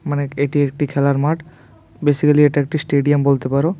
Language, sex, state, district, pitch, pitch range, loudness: Bengali, male, Tripura, West Tripura, 145 Hz, 140-150 Hz, -17 LUFS